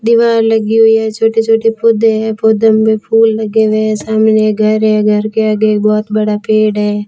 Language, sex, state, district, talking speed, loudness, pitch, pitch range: Hindi, female, Rajasthan, Jaisalmer, 210 wpm, -11 LUFS, 220 Hz, 215-225 Hz